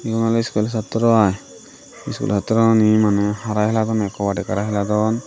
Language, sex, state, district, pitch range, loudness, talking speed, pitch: Chakma, male, Tripura, Dhalai, 100-115 Hz, -19 LUFS, 150 wpm, 105 Hz